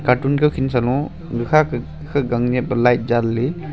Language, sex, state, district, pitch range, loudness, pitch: Wancho, male, Arunachal Pradesh, Longding, 120-145 Hz, -19 LUFS, 125 Hz